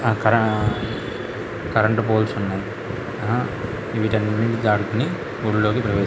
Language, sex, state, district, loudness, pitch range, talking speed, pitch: Telugu, male, Andhra Pradesh, Krishna, -22 LUFS, 105-115 Hz, 90 wpm, 110 Hz